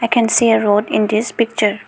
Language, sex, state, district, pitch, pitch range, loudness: English, female, Arunachal Pradesh, Lower Dibang Valley, 225 Hz, 210-230 Hz, -15 LUFS